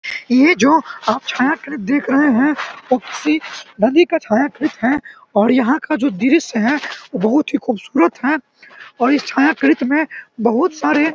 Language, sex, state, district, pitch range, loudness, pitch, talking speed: Hindi, male, Bihar, Samastipur, 250-310 Hz, -16 LUFS, 280 Hz, 165 wpm